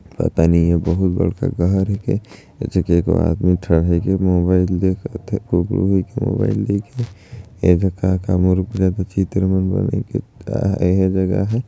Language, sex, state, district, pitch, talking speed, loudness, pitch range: Chhattisgarhi, male, Chhattisgarh, Jashpur, 95 Hz, 180 wpm, -18 LUFS, 90-100 Hz